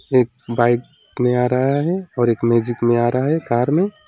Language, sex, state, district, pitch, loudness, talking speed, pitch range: Hindi, male, West Bengal, Alipurduar, 125 Hz, -18 LUFS, 220 wpm, 120-145 Hz